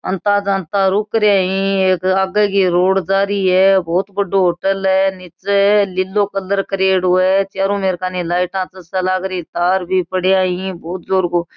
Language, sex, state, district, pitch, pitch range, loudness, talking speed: Marwari, female, Rajasthan, Nagaur, 190 Hz, 185-195 Hz, -16 LUFS, 175 wpm